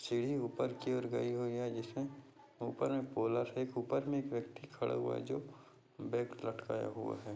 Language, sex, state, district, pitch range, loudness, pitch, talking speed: Hindi, male, Maharashtra, Nagpur, 115-130 Hz, -39 LUFS, 120 Hz, 185 wpm